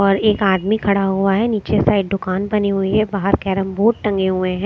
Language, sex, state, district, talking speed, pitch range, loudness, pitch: Hindi, female, Maharashtra, Mumbai Suburban, 220 wpm, 195-210 Hz, -17 LUFS, 195 Hz